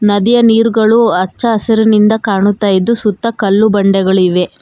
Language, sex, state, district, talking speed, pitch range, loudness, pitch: Kannada, female, Karnataka, Bangalore, 115 wpm, 195-225 Hz, -11 LUFS, 210 Hz